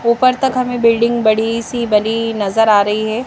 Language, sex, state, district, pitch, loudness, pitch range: Hindi, female, Madhya Pradesh, Bhopal, 230 Hz, -14 LUFS, 220-240 Hz